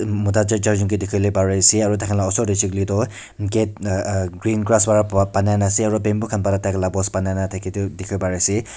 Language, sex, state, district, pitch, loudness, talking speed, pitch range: Nagamese, male, Nagaland, Kohima, 100 Hz, -19 LUFS, 255 wpm, 95-105 Hz